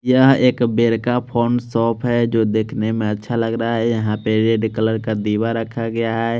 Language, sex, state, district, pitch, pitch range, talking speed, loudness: Hindi, male, Chandigarh, Chandigarh, 115 Hz, 110-120 Hz, 225 wpm, -18 LUFS